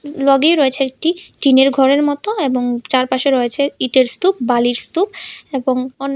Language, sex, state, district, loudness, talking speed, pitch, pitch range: Bengali, female, Tripura, West Tripura, -15 LUFS, 145 wpm, 270 Hz, 255-290 Hz